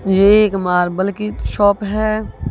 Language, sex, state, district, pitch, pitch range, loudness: Hindi, female, Punjab, Kapurthala, 200 Hz, 190-210 Hz, -16 LUFS